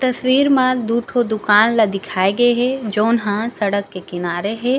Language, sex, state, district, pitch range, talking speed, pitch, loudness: Chhattisgarhi, female, Chhattisgarh, Raigarh, 205-245 Hz, 175 wpm, 225 Hz, -17 LUFS